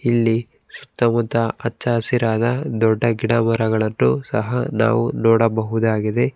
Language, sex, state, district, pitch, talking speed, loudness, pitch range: Kannada, male, Karnataka, Bangalore, 115 Hz, 85 wpm, -19 LUFS, 110-120 Hz